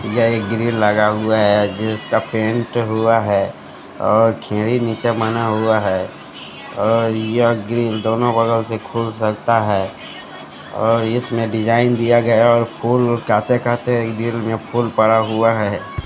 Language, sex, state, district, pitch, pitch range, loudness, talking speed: Hindi, male, Haryana, Jhajjar, 115 Hz, 110-115 Hz, -17 LUFS, 150 wpm